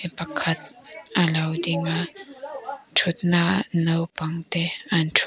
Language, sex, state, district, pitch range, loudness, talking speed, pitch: Mizo, female, Mizoram, Aizawl, 165-210 Hz, -23 LUFS, 100 wpm, 175 Hz